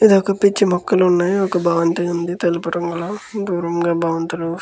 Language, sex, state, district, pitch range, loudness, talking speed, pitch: Telugu, male, Andhra Pradesh, Guntur, 170-195 Hz, -18 LUFS, 170 wpm, 175 Hz